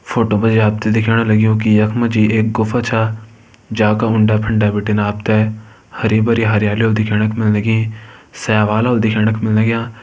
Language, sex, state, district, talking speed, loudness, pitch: Hindi, male, Uttarakhand, Uttarkashi, 140 wpm, -15 LUFS, 110 Hz